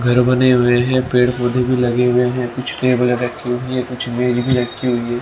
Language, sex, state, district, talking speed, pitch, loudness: Hindi, male, Haryana, Rohtak, 240 wpm, 125 Hz, -16 LUFS